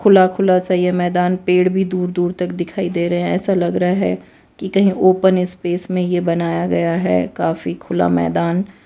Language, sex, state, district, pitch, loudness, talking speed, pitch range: Hindi, female, Gujarat, Valsad, 180 Hz, -17 LUFS, 205 wpm, 175-185 Hz